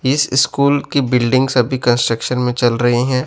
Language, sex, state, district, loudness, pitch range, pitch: Hindi, male, Bihar, West Champaran, -15 LUFS, 120-135 Hz, 125 Hz